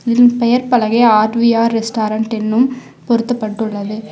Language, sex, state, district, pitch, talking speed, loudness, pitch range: Tamil, female, Tamil Nadu, Namakkal, 230 Hz, 100 wpm, -14 LUFS, 220-240 Hz